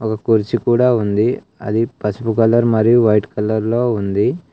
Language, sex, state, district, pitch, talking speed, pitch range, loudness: Telugu, male, Telangana, Komaram Bheem, 115 Hz, 160 wpm, 105-120 Hz, -16 LUFS